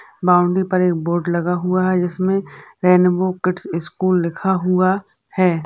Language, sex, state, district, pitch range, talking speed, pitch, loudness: Hindi, female, Uttar Pradesh, Etah, 175-185 Hz, 160 wpm, 180 Hz, -18 LUFS